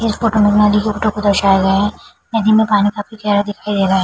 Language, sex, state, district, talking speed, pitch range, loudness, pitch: Hindi, female, Chhattisgarh, Bilaspur, 280 wpm, 205-215 Hz, -15 LUFS, 205 Hz